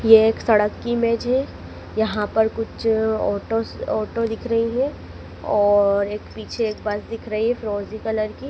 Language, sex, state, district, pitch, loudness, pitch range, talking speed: Hindi, female, Madhya Pradesh, Dhar, 220 Hz, -21 LUFS, 210-230 Hz, 175 wpm